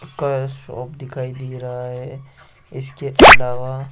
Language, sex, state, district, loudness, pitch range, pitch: Hindi, male, Rajasthan, Jaipur, -10 LUFS, 125-135 Hz, 130 Hz